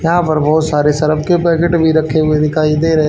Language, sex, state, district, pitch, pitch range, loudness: Hindi, male, Haryana, Rohtak, 155 Hz, 150-165 Hz, -13 LUFS